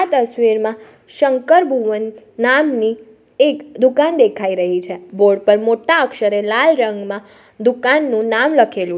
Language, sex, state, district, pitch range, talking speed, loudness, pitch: Gujarati, female, Gujarat, Valsad, 210-265 Hz, 135 wpm, -15 LUFS, 225 Hz